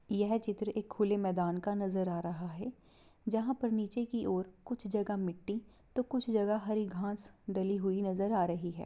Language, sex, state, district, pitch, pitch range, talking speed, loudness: Hindi, female, Bihar, Begusarai, 205 Hz, 190-220 Hz, 195 wpm, -35 LUFS